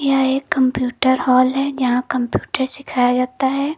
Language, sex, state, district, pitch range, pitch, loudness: Hindi, female, Uttar Pradesh, Lucknow, 250-270 Hz, 260 Hz, -18 LUFS